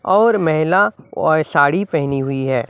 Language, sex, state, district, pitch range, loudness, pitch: Hindi, male, Bihar, Katihar, 140-190 Hz, -16 LUFS, 155 Hz